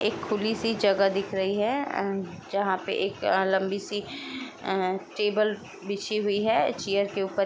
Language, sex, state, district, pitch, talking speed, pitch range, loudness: Hindi, female, Uttar Pradesh, Etah, 200 Hz, 175 wpm, 195-215 Hz, -27 LUFS